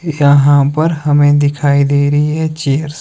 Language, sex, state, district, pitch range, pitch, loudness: Hindi, male, Himachal Pradesh, Shimla, 140-155 Hz, 145 Hz, -12 LUFS